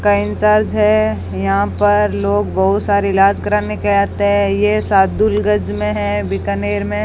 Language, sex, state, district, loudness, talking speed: Hindi, female, Rajasthan, Bikaner, -15 LUFS, 160 wpm